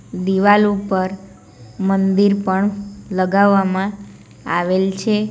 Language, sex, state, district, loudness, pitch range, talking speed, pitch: Gujarati, female, Gujarat, Valsad, -17 LUFS, 190-200 Hz, 80 wpm, 195 Hz